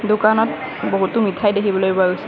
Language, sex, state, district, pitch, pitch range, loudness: Assamese, female, Assam, Kamrup Metropolitan, 205 Hz, 190-215 Hz, -18 LUFS